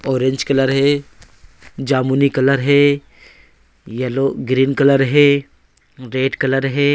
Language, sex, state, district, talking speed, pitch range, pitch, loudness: Hindi, male, Bihar, Begusarai, 110 wpm, 130-140 Hz, 135 Hz, -16 LUFS